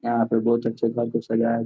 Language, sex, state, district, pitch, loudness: Hindi, male, Bihar, Gopalganj, 115 Hz, -23 LUFS